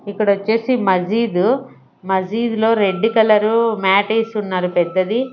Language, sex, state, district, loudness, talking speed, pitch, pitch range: Telugu, female, Andhra Pradesh, Sri Satya Sai, -17 LUFS, 110 wpm, 215 Hz, 190-225 Hz